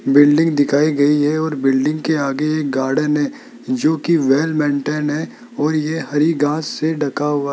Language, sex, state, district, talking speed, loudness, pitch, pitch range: Hindi, male, Rajasthan, Jaipur, 200 wpm, -17 LUFS, 150 Hz, 145-155 Hz